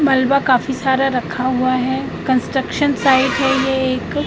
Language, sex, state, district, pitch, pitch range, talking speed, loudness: Hindi, female, Madhya Pradesh, Katni, 265 Hz, 255-270 Hz, 155 wpm, -17 LUFS